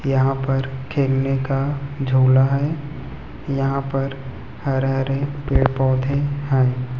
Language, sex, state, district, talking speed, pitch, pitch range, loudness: Hindi, male, Chhattisgarh, Raipur, 110 wpm, 135 Hz, 130-140 Hz, -20 LUFS